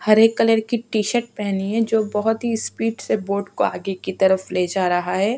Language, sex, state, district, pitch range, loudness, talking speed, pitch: Hindi, female, Uttarakhand, Tehri Garhwal, 190-225 Hz, -20 LUFS, 225 wpm, 210 Hz